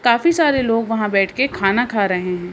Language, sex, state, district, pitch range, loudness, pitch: Hindi, female, Madhya Pradesh, Bhopal, 195-250 Hz, -17 LUFS, 225 Hz